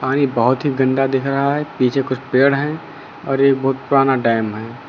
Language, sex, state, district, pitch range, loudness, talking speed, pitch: Hindi, male, Uttar Pradesh, Lucknow, 130-140 Hz, -17 LUFS, 220 wpm, 135 Hz